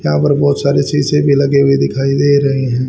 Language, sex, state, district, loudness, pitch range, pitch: Hindi, male, Haryana, Rohtak, -12 LUFS, 135-145 Hz, 140 Hz